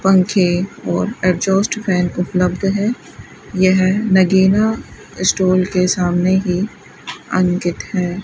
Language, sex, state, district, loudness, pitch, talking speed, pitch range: Hindi, female, Rajasthan, Bikaner, -16 LUFS, 185 Hz, 100 wpm, 180-195 Hz